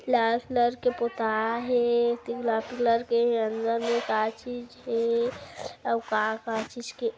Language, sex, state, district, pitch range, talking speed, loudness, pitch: Hindi, female, Chhattisgarh, Kabirdham, 225-240 Hz, 115 wpm, -27 LUFS, 235 Hz